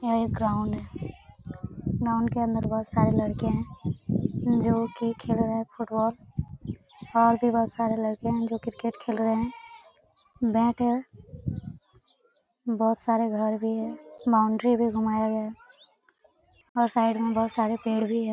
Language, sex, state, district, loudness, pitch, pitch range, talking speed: Hindi, female, Bihar, Lakhisarai, -27 LUFS, 230 Hz, 225-235 Hz, 145 wpm